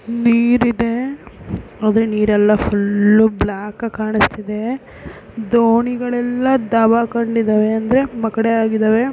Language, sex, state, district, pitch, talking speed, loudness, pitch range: Kannada, female, Karnataka, Belgaum, 230 Hz, 100 wpm, -16 LUFS, 215-235 Hz